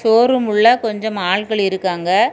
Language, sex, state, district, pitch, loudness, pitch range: Tamil, female, Tamil Nadu, Kanyakumari, 215 Hz, -16 LUFS, 190-225 Hz